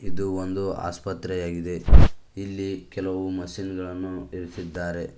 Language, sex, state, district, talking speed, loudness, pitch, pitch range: Kannada, male, Karnataka, Koppal, 105 wpm, -27 LUFS, 95 Hz, 90-95 Hz